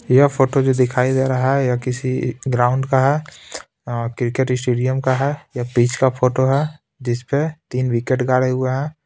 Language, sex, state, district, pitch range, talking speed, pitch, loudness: Hindi, male, Bihar, Patna, 125-135 Hz, 190 wpm, 130 Hz, -19 LUFS